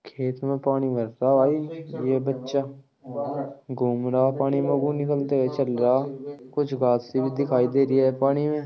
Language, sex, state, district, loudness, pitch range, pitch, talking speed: Hindi, male, Uttar Pradesh, Muzaffarnagar, -24 LUFS, 130-140 Hz, 135 Hz, 180 wpm